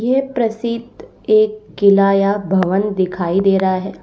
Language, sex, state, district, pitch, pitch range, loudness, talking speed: Hindi, female, Uttar Pradesh, Lalitpur, 200 Hz, 190-240 Hz, -16 LUFS, 150 wpm